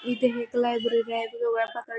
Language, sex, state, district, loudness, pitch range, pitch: Marathi, female, Maharashtra, Pune, -27 LUFS, 230-240 Hz, 235 Hz